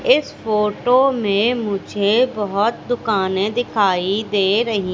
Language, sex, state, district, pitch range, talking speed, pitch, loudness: Hindi, female, Madhya Pradesh, Katni, 200-240 Hz, 110 wpm, 210 Hz, -18 LUFS